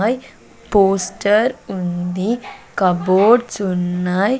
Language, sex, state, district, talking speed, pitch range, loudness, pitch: Telugu, female, Andhra Pradesh, Sri Satya Sai, 70 wpm, 185-235 Hz, -17 LUFS, 195 Hz